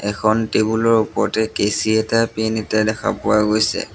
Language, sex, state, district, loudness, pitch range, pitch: Assamese, male, Assam, Sonitpur, -18 LUFS, 105-110 Hz, 110 Hz